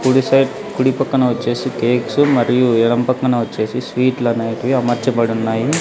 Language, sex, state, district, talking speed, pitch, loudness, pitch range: Telugu, male, Andhra Pradesh, Sri Satya Sai, 145 wpm, 125 Hz, -16 LUFS, 115-130 Hz